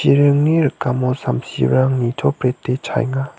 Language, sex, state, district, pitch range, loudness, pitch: Garo, male, Meghalaya, West Garo Hills, 125-145 Hz, -18 LUFS, 130 Hz